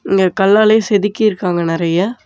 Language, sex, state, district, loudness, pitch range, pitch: Tamil, male, Tamil Nadu, Namakkal, -14 LUFS, 180-215 Hz, 195 Hz